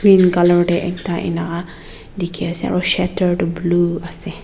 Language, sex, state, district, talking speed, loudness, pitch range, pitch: Nagamese, female, Nagaland, Dimapur, 160 wpm, -16 LUFS, 170-180 Hz, 175 Hz